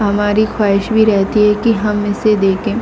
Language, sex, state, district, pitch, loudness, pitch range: Hindi, female, Jharkhand, Jamtara, 210 Hz, -13 LUFS, 205-215 Hz